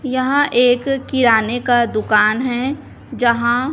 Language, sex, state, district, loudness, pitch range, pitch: Hindi, female, Chhattisgarh, Raipur, -16 LUFS, 235-260 Hz, 245 Hz